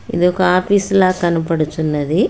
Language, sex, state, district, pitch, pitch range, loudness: Telugu, female, Telangana, Hyderabad, 180 Hz, 165-185 Hz, -16 LUFS